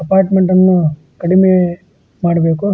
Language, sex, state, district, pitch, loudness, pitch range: Kannada, male, Karnataka, Dharwad, 185 Hz, -13 LUFS, 170-190 Hz